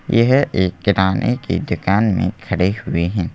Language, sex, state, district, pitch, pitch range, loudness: Hindi, male, Madhya Pradesh, Bhopal, 95 Hz, 90-110 Hz, -18 LUFS